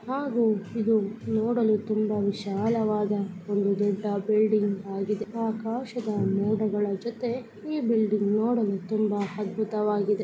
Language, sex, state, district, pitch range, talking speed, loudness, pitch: Kannada, female, Karnataka, Belgaum, 205-225 Hz, 110 wpm, -27 LUFS, 215 Hz